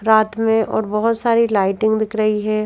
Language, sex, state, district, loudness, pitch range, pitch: Hindi, female, Madhya Pradesh, Bhopal, -17 LUFS, 215-225 Hz, 220 Hz